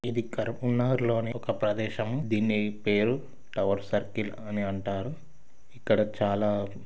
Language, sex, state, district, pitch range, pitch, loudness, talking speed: Telugu, male, Telangana, Karimnagar, 105-120 Hz, 110 Hz, -29 LUFS, 105 wpm